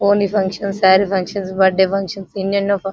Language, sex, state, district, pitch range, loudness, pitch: Telugu, female, Telangana, Nalgonda, 190-200 Hz, -17 LUFS, 195 Hz